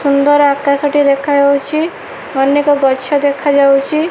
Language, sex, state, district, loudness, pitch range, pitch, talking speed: Odia, female, Odisha, Malkangiri, -12 LUFS, 280-290 Hz, 285 Hz, 100 wpm